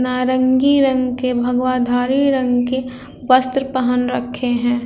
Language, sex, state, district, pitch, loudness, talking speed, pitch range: Hindi, female, Bihar, Vaishali, 255 Hz, -17 LUFS, 100 wpm, 245-260 Hz